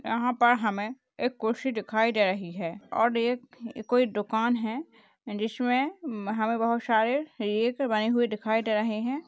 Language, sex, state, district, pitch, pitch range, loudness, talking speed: Hindi, female, Uttar Pradesh, Hamirpur, 230 Hz, 215-245 Hz, -27 LUFS, 160 wpm